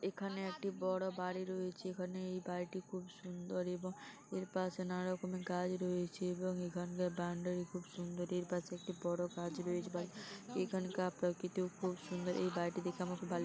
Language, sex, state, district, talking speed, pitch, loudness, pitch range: Bengali, female, West Bengal, Paschim Medinipur, 175 wpm, 180 Hz, -42 LUFS, 180-185 Hz